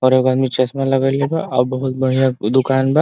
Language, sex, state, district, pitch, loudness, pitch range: Bhojpuri, male, Uttar Pradesh, Ghazipur, 130 Hz, -17 LUFS, 130-135 Hz